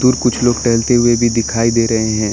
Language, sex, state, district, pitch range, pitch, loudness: Hindi, male, Arunachal Pradesh, Lower Dibang Valley, 115-120 Hz, 115 Hz, -14 LUFS